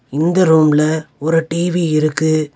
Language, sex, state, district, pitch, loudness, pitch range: Tamil, male, Tamil Nadu, Nilgiris, 155 Hz, -15 LUFS, 155-165 Hz